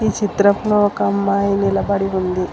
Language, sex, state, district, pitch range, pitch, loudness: Telugu, female, Telangana, Hyderabad, 195-205 Hz, 200 Hz, -17 LUFS